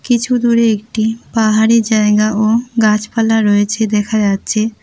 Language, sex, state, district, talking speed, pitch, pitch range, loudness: Bengali, female, West Bengal, Cooch Behar, 125 wpm, 220 Hz, 215-230 Hz, -13 LUFS